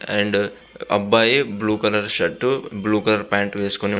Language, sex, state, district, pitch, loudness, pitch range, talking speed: Telugu, male, Andhra Pradesh, Visakhapatnam, 105 Hz, -20 LUFS, 100-105 Hz, 165 wpm